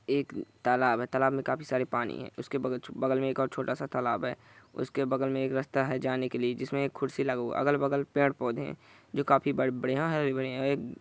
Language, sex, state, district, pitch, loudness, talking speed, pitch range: Hindi, male, Bihar, Saran, 135 Hz, -30 LUFS, 205 wpm, 130-140 Hz